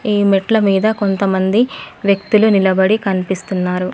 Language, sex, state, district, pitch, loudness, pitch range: Telugu, female, Telangana, Adilabad, 195 Hz, -15 LUFS, 190-215 Hz